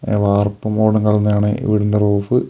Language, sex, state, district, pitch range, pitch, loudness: Malayalam, male, Kerala, Kasaragod, 105-110 Hz, 105 Hz, -16 LUFS